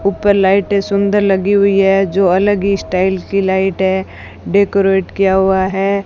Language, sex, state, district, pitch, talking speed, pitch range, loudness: Hindi, female, Rajasthan, Bikaner, 195 Hz, 160 wpm, 190-200 Hz, -13 LUFS